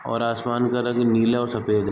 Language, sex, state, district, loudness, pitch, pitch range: Hindi, male, Bihar, Sitamarhi, -22 LUFS, 115 Hz, 115-120 Hz